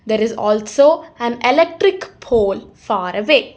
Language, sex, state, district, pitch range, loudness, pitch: English, female, Karnataka, Bangalore, 220-320 Hz, -16 LUFS, 235 Hz